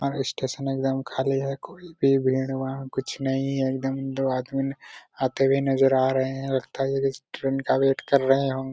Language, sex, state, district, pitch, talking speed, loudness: Hindi, male, Jharkhand, Jamtara, 135 Hz, 220 wpm, -25 LUFS